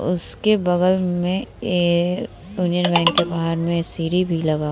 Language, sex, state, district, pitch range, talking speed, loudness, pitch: Hindi, female, Bihar, Vaishali, 170-180 Hz, 180 wpm, -20 LUFS, 175 Hz